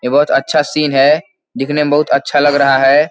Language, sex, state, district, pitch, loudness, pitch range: Hindi, male, Uttar Pradesh, Gorakhpur, 150 Hz, -12 LUFS, 145-200 Hz